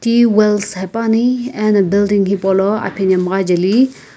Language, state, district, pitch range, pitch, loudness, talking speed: Sumi, Nagaland, Kohima, 190-225 Hz, 205 Hz, -14 LUFS, 100 wpm